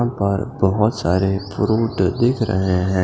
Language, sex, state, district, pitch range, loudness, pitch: Hindi, male, Himachal Pradesh, Shimla, 95-115 Hz, -19 LUFS, 100 Hz